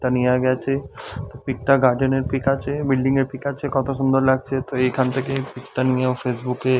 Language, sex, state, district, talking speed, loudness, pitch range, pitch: Bengali, male, West Bengal, Dakshin Dinajpur, 220 wpm, -21 LUFS, 130-135 Hz, 130 Hz